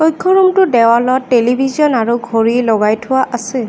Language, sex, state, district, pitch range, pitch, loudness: Assamese, female, Assam, Kamrup Metropolitan, 230-270 Hz, 245 Hz, -12 LUFS